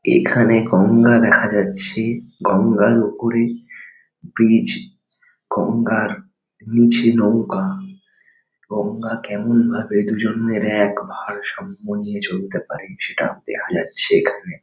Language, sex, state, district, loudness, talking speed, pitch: Bengali, male, West Bengal, Paschim Medinipur, -18 LUFS, 90 wpm, 120 Hz